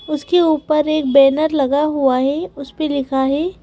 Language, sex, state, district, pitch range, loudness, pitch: Hindi, female, Madhya Pradesh, Bhopal, 275-310 Hz, -16 LUFS, 295 Hz